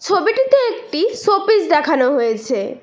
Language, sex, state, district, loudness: Bengali, female, West Bengal, Cooch Behar, -16 LUFS